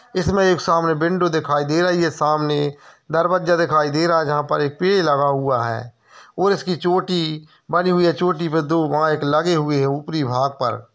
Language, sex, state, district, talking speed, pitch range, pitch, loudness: Hindi, male, Bihar, Lakhisarai, 205 wpm, 145-175 Hz, 160 Hz, -19 LUFS